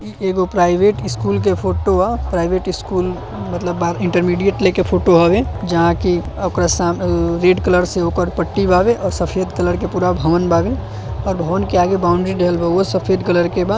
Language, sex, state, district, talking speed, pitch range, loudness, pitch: Bhojpuri, male, Uttar Pradesh, Deoria, 190 wpm, 170-185 Hz, -16 LUFS, 180 Hz